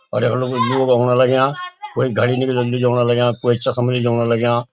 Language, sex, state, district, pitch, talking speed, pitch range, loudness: Garhwali, male, Uttarakhand, Uttarkashi, 125 Hz, 205 wpm, 120-130 Hz, -17 LUFS